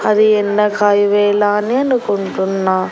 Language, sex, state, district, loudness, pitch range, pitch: Telugu, female, Andhra Pradesh, Annamaya, -14 LUFS, 205-210 Hz, 205 Hz